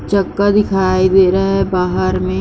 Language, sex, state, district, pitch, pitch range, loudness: Hindi, female, Uttarakhand, Uttarkashi, 190 Hz, 180-195 Hz, -14 LUFS